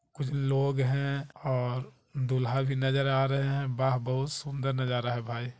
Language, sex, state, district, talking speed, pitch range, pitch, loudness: Hindi, male, Bihar, Jahanabad, 170 wpm, 130-140 Hz, 135 Hz, -30 LUFS